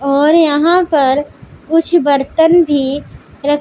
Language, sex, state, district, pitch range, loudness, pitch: Hindi, female, Punjab, Pathankot, 280-330 Hz, -12 LUFS, 295 Hz